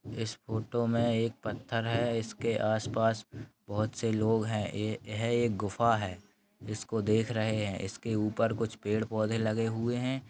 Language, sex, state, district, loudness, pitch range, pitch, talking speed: Hindi, male, Uttar Pradesh, Gorakhpur, -32 LUFS, 110-115 Hz, 110 Hz, 170 wpm